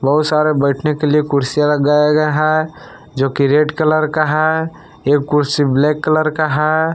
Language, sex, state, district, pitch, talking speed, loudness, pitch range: Hindi, male, Jharkhand, Palamu, 150 Hz, 175 wpm, -15 LUFS, 145-155 Hz